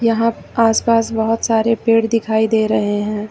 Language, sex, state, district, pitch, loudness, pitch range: Hindi, female, Uttar Pradesh, Lucknow, 225 Hz, -16 LUFS, 220-230 Hz